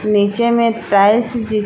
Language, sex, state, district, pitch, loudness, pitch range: Hindi, female, Jharkhand, Palamu, 215 Hz, -14 LUFS, 205-235 Hz